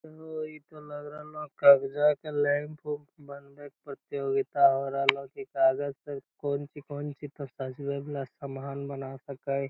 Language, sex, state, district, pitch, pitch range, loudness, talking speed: Hindi, male, Bihar, Lakhisarai, 145 Hz, 140-150 Hz, -29 LUFS, 175 wpm